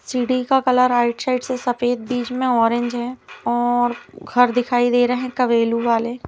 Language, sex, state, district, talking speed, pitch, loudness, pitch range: Hindi, female, Chhattisgarh, Rajnandgaon, 180 wpm, 245 Hz, -19 LUFS, 240-250 Hz